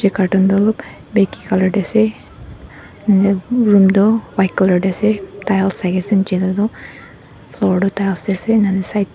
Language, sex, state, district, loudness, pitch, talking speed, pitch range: Nagamese, female, Nagaland, Dimapur, -16 LUFS, 195 Hz, 140 wpm, 190-205 Hz